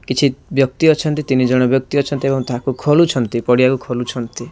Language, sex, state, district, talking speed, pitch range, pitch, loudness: Odia, male, Odisha, Khordha, 160 wpm, 125-140 Hz, 130 Hz, -16 LUFS